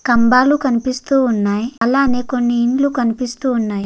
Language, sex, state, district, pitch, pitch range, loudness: Telugu, female, Andhra Pradesh, Guntur, 245 Hz, 235-265 Hz, -16 LUFS